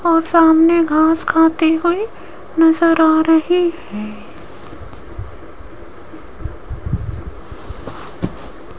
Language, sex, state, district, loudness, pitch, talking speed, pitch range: Hindi, female, Rajasthan, Jaipur, -15 LUFS, 325 Hz, 60 wpm, 320-340 Hz